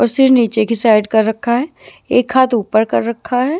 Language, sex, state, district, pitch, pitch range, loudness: Hindi, female, Himachal Pradesh, Shimla, 235 Hz, 220-255 Hz, -14 LUFS